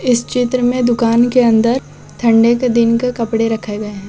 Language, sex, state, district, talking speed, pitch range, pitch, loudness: Hindi, female, Jharkhand, Deoghar, 205 wpm, 225-245 Hz, 235 Hz, -14 LUFS